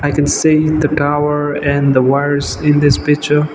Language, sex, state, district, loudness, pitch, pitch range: English, male, Nagaland, Dimapur, -13 LUFS, 145 Hz, 145-150 Hz